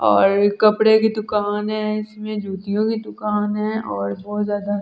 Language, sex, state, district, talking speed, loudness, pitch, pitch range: Hindi, female, Delhi, New Delhi, 150 wpm, -20 LUFS, 210 Hz, 205-215 Hz